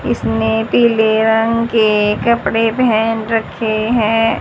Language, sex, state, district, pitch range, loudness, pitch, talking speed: Hindi, female, Haryana, Jhajjar, 215-225 Hz, -14 LUFS, 225 Hz, 110 wpm